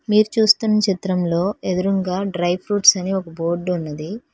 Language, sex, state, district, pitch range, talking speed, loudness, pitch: Telugu, female, Telangana, Hyderabad, 175-210 Hz, 140 wpm, -19 LUFS, 190 Hz